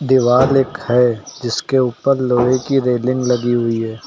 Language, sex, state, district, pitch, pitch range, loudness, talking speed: Hindi, male, Uttar Pradesh, Lucknow, 125 Hz, 120-130 Hz, -16 LUFS, 160 wpm